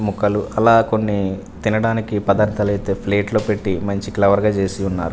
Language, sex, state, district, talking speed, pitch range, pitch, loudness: Telugu, male, Andhra Pradesh, Manyam, 150 wpm, 100-105 Hz, 100 Hz, -18 LUFS